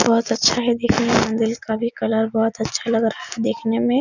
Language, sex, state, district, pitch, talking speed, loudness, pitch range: Hindi, female, Bihar, Supaul, 230 Hz, 240 wpm, -20 LUFS, 225-235 Hz